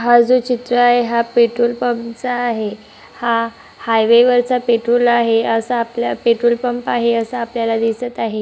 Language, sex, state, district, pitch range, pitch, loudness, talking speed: Marathi, male, Maharashtra, Chandrapur, 230-245 Hz, 235 Hz, -16 LUFS, 155 wpm